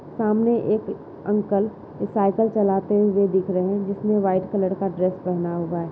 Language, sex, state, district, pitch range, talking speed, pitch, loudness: Hindi, female, Uttar Pradesh, Hamirpur, 185-210 Hz, 170 wpm, 200 Hz, -22 LUFS